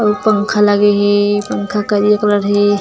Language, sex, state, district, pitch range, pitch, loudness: Chhattisgarhi, female, Chhattisgarh, Jashpur, 205-210 Hz, 205 Hz, -13 LUFS